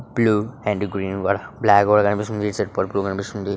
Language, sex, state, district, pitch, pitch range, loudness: Telugu, male, Andhra Pradesh, Srikakulam, 100 Hz, 100-105 Hz, -21 LUFS